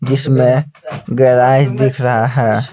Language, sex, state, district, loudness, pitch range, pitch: Hindi, male, Bihar, Patna, -13 LUFS, 125-135 Hz, 130 Hz